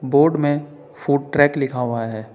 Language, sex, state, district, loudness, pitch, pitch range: Hindi, male, Uttar Pradesh, Saharanpur, -19 LUFS, 140 Hz, 125-145 Hz